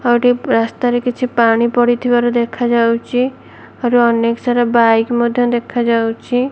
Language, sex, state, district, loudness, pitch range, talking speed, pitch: Odia, female, Odisha, Malkangiri, -15 LUFS, 235-245 Hz, 110 wpm, 240 Hz